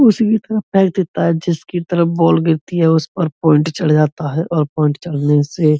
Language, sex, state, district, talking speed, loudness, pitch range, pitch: Hindi, male, Uttar Pradesh, Muzaffarnagar, 215 wpm, -16 LUFS, 155-175 Hz, 165 Hz